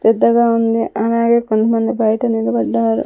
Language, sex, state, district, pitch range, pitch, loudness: Telugu, female, Andhra Pradesh, Sri Satya Sai, 215-230 Hz, 225 Hz, -15 LUFS